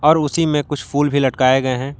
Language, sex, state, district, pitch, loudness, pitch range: Hindi, male, Jharkhand, Garhwa, 140 Hz, -17 LUFS, 130-150 Hz